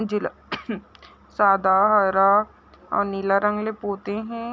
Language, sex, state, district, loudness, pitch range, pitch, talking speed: Chhattisgarhi, female, Chhattisgarh, Raigarh, -21 LUFS, 195-210 Hz, 205 Hz, 120 wpm